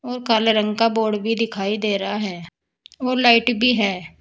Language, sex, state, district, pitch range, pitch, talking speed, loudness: Hindi, female, Uttar Pradesh, Saharanpur, 205-235 Hz, 220 Hz, 200 wpm, -19 LUFS